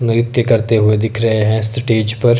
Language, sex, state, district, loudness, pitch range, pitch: Hindi, male, Himachal Pradesh, Shimla, -14 LUFS, 110-120 Hz, 115 Hz